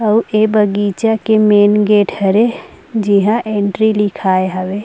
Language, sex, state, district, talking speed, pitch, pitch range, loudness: Chhattisgarhi, female, Chhattisgarh, Rajnandgaon, 135 wpm, 210 Hz, 200-220 Hz, -13 LUFS